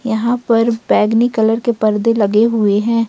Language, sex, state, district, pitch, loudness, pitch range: Hindi, female, Jharkhand, Ranchi, 225 Hz, -14 LUFS, 215-230 Hz